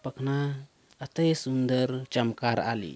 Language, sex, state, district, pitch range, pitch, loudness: Hindi, male, Chhattisgarh, Jashpur, 120-140 Hz, 130 Hz, -28 LUFS